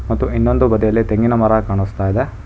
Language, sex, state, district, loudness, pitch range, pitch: Kannada, male, Karnataka, Bangalore, -16 LUFS, 105-115 Hz, 110 Hz